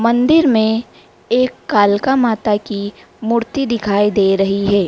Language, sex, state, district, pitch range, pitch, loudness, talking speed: Hindi, female, Madhya Pradesh, Dhar, 205-245 Hz, 220 Hz, -15 LUFS, 135 wpm